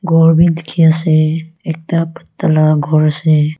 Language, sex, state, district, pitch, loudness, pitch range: Nagamese, female, Nagaland, Kohima, 160 Hz, -13 LUFS, 155-165 Hz